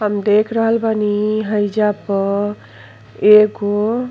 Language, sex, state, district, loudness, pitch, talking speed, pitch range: Bhojpuri, female, Uttar Pradesh, Gorakhpur, -16 LUFS, 210 Hz, 115 wpm, 205-215 Hz